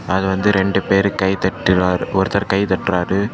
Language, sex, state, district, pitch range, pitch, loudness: Tamil, male, Tamil Nadu, Kanyakumari, 95-100 Hz, 95 Hz, -17 LUFS